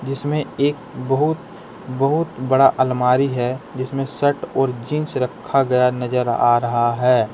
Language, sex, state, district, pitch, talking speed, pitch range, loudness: Hindi, male, Jharkhand, Deoghar, 130 Hz, 140 wpm, 125-145 Hz, -19 LUFS